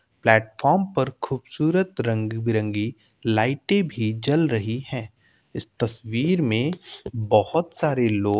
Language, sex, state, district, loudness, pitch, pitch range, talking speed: Hindi, male, Uttar Pradesh, Hamirpur, -23 LUFS, 120 Hz, 110-150 Hz, 120 wpm